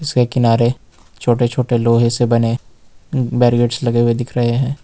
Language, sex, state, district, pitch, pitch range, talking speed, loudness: Hindi, male, Jharkhand, Ranchi, 120 Hz, 115-125 Hz, 160 wpm, -16 LUFS